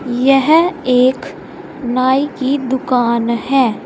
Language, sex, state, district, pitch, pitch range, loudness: Hindi, female, Uttar Pradesh, Saharanpur, 260 Hz, 250-275 Hz, -14 LUFS